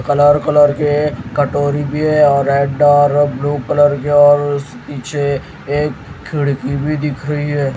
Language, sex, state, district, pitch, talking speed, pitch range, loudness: Hindi, male, Haryana, Jhajjar, 145 Hz, 160 wpm, 140-145 Hz, -14 LUFS